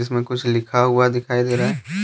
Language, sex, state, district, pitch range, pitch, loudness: Hindi, male, Jharkhand, Deoghar, 120-125 Hz, 125 Hz, -19 LUFS